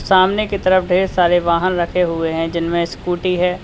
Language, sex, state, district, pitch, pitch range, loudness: Hindi, male, Uttar Pradesh, Lalitpur, 180 Hz, 170-185 Hz, -17 LUFS